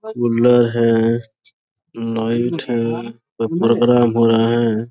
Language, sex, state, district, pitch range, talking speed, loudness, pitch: Hindi, male, Jharkhand, Sahebganj, 115-120 Hz, 110 wpm, -17 LUFS, 115 Hz